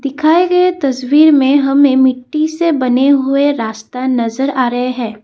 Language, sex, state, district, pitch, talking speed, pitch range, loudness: Hindi, female, Assam, Kamrup Metropolitan, 275 Hz, 160 wpm, 255-295 Hz, -12 LUFS